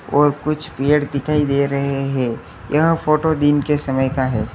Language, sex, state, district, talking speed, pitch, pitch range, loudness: Hindi, male, Uttar Pradesh, Lalitpur, 185 wpm, 140 Hz, 135-150 Hz, -18 LUFS